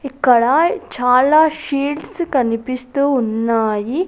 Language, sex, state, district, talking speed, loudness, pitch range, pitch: Telugu, female, Andhra Pradesh, Sri Satya Sai, 75 wpm, -16 LUFS, 240-300 Hz, 265 Hz